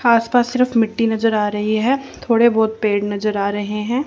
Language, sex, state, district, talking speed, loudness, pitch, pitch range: Hindi, female, Haryana, Charkhi Dadri, 205 wpm, -18 LUFS, 225 Hz, 210-235 Hz